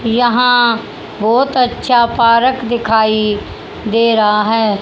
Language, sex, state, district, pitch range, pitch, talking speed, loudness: Hindi, female, Haryana, Charkhi Dadri, 220-240 Hz, 230 Hz, 100 wpm, -13 LUFS